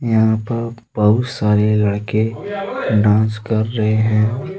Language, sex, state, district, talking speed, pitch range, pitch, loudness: Hindi, male, Jharkhand, Deoghar, 120 wpm, 105-115 Hz, 110 Hz, -17 LUFS